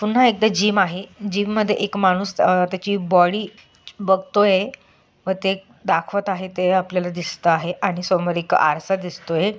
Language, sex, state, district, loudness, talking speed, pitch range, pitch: Marathi, female, Maharashtra, Solapur, -20 LUFS, 155 wpm, 180-200 Hz, 190 Hz